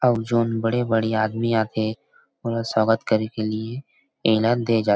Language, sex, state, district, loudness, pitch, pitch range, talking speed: Chhattisgarhi, male, Chhattisgarh, Rajnandgaon, -22 LUFS, 115 Hz, 110-115 Hz, 195 wpm